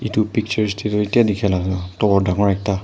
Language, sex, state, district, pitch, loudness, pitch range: Nagamese, male, Nagaland, Kohima, 100 Hz, -19 LUFS, 95-110 Hz